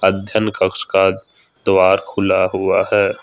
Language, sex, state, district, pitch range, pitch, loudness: Hindi, male, Jharkhand, Ranchi, 95-110 Hz, 95 Hz, -16 LUFS